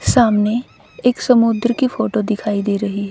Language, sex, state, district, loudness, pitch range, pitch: Hindi, female, Haryana, Rohtak, -17 LUFS, 205-240 Hz, 220 Hz